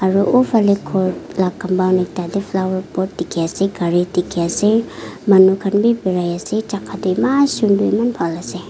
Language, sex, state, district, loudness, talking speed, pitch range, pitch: Nagamese, female, Nagaland, Kohima, -17 LUFS, 170 wpm, 180-205 Hz, 190 Hz